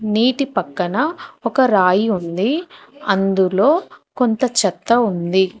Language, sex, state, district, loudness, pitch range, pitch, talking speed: Telugu, female, Telangana, Hyderabad, -18 LUFS, 190-260 Hz, 220 Hz, 95 wpm